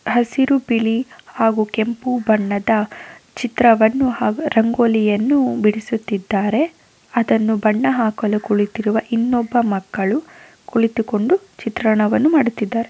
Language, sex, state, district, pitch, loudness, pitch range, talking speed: Kannada, female, Karnataka, Raichur, 225 Hz, -18 LUFS, 215-245 Hz, 85 wpm